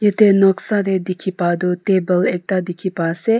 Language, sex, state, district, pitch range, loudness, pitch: Nagamese, female, Nagaland, Kohima, 180-200 Hz, -17 LUFS, 185 Hz